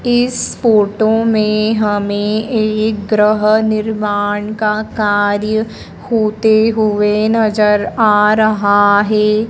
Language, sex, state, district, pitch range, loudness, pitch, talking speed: Hindi, female, Madhya Pradesh, Dhar, 210-220 Hz, -13 LUFS, 215 Hz, 95 wpm